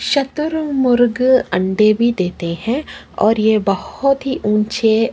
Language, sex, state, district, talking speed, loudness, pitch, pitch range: Hindi, female, Chhattisgarh, Kabirdham, 130 wpm, -16 LUFS, 225 Hz, 210-265 Hz